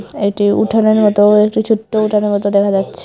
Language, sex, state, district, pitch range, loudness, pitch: Bengali, female, Tripura, Unakoti, 205-215 Hz, -13 LUFS, 210 Hz